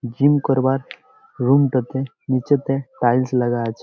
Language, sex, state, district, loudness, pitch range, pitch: Bengali, male, West Bengal, Jalpaiguri, -19 LUFS, 125-140 Hz, 130 Hz